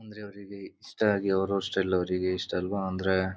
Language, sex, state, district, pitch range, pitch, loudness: Kannada, male, Karnataka, Bijapur, 95-100 Hz, 95 Hz, -28 LUFS